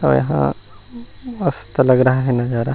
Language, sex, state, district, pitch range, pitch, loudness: Chhattisgarhi, male, Chhattisgarh, Rajnandgaon, 125-180 Hz, 130 Hz, -17 LUFS